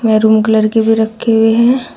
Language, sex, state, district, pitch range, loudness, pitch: Hindi, female, Uttar Pradesh, Shamli, 220-225 Hz, -11 LUFS, 225 Hz